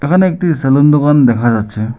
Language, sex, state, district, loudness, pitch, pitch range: Bengali, male, West Bengal, Alipurduar, -11 LUFS, 140 Hz, 120-150 Hz